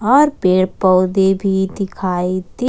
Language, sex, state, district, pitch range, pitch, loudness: Hindi, female, Jharkhand, Ranchi, 185-200 Hz, 190 Hz, -16 LUFS